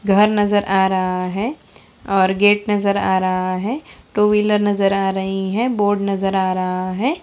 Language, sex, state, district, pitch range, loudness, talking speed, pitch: Hindi, female, Uttar Pradesh, Budaun, 190-210 Hz, -18 LUFS, 180 wpm, 195 Hz